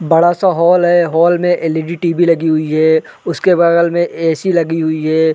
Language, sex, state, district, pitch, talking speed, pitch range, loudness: Hindi, male, Chhattisgarh, Raigarh, 170 Hz, 215 wpm, 160-175 Hz, -13 LUFS